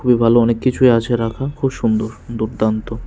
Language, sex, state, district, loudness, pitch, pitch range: Bengali, male, Tripura, West Tripura, -17 LUFS, 115 Hz, 110-125 Hz